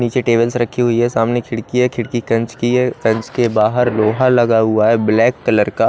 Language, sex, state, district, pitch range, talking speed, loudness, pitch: Hindi, male, Haryana, Rohtak, 115-125 Hz, 225 wpm, -15 LUFS, 120 Hz